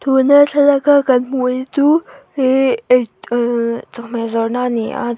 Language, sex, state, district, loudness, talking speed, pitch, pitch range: Mizo, female, Mizoram, Aizawl, -15 LUFS, 150 wpm, 255 Hz, 235-275 Hz